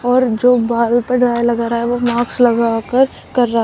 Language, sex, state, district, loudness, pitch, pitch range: Hindi, female, Uttar Pradesh, Shamli, -15 LUFS, 240 Hz, 235-245 Hz